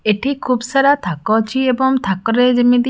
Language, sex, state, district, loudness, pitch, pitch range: Odia, female, Odisha, Khordha, -16 LUFS, 250 Hz, 220-265 Hz